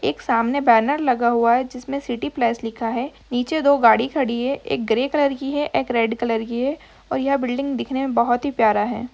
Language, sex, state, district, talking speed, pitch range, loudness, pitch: Hindi, female, Bihar, Sitamarhi, 245 wpm, 235-275 Hz, -20 LUFS, 245 Hz